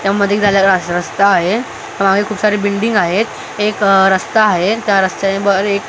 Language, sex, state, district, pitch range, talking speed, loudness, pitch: Marathi, male, Maharashtra, Mumbai Suburban, 195-210 Hz, 175 wpm, -13 LUFS, 200 Hz